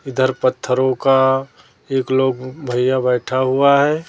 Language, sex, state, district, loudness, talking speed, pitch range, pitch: Hindi, female, Chhattisgarh, Raipur, -17 LUFS, 130 wpm, 130-135 Hz, 130 Hz